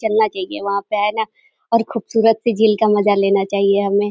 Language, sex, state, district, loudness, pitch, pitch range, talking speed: Hindi, female, Uttar Pradesh, Deoria, -17 LUFS, 215 Hz, 200-225 Hz, 220 wpm